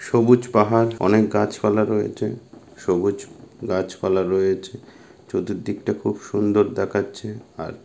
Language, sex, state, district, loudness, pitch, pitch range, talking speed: Bengali, male, West Bengal, Malda, -21 LUFS, 105 Hz, 95-110 Hz, 105 wpm